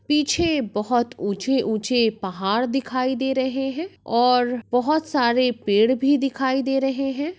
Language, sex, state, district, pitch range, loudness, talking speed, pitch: Hindi, female, Uttar Pradesh, Etah, 240-270 Hz, -22 LUFS, 140 wpm, 260 Hz